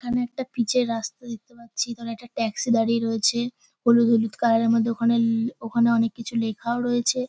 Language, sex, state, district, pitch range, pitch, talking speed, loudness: Bengali, female, West Bengal, North 24 Parganas, 230-240 Hz, 235 Hz, 200 wpm, -23 LUFS